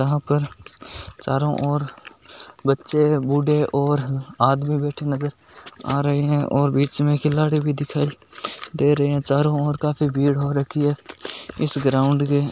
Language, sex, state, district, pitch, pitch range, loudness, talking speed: Hindi, male, Rajasthan, Nagaur, 145 Hz, 140-150 Hz, -21 LUFS, 155 wpm